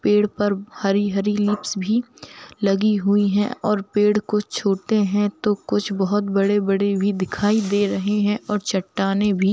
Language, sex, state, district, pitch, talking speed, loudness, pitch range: Hindi, female, Bihar, Darbhanga, 205 Hz, 165 wpm, -21 LUFS, 195-210 Hz